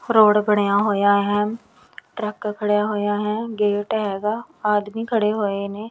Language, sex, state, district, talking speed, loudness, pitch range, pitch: Punjabi, female, Punjab, Kapurthala, 140 wpm, -21 LUFS, 205-215 Hz, 210 Hz